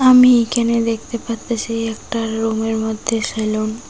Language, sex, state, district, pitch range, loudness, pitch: Bengali, female, West Bengal, Cooch Behar, 220-235 Hz, -18 LUFS, 225 Hz